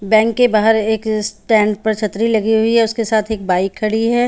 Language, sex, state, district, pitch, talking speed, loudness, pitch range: Hindi, female, Haryana, Charkhi Dadri, 220 Hz, 225 wpm, -16 LUFS, 215-225 Hz